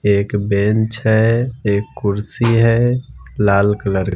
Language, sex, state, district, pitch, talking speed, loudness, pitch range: Hindi, male, Bihar, West Champaran, 105 Hz, 130 wpm, -16 LUFS, 100-115 Hz